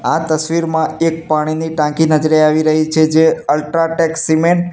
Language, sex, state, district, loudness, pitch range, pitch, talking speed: Gujarati, male, Gujarat, Gandhinagar, -14 LUFS, 155-165 Hz, 160 Hz, 165 wpm